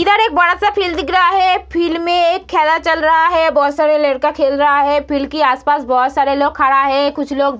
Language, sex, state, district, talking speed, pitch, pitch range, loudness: Hindi, female, Bihar, Muzaffarpur, 245 wpm, 300 Hz, 285-345 Hz, -14 LUFS